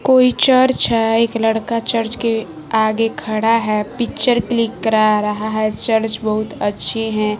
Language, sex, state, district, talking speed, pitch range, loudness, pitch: Hindi, female, Bihar, West Champaran, 155 wpm, 215-230 Hz, -16 LUFS, 225 Hz